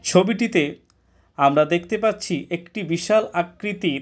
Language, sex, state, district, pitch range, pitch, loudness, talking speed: Bengali, male, West Bengal, Kolkata, 150-210 Hz, 175 Hz, -21 LUFS, 105 wpm